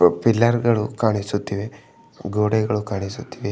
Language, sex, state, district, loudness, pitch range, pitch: Kannada, male, Karnataka, Bidar, -21 LUFS, 100-115 Hz, 105 Hz